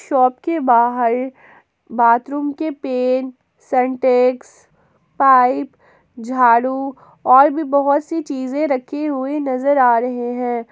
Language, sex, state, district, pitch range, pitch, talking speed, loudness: Hindi, female, Jharkhand, Palamu, 250-285 Hz, 260 Hz, 110 wpm, -17 LUFS